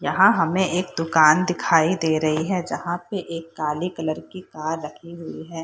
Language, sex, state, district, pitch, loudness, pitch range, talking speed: Hindi, female, Bihar, Saharsa, 165 Hz, -22 LUFS, 155-180 Hz, 190 wpm